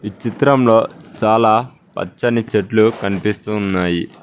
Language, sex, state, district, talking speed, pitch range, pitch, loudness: Telugu, male, Telangana, Mahabubabad, 100 wpm, 105-115 Hz, 110 Hz, -16 LUFS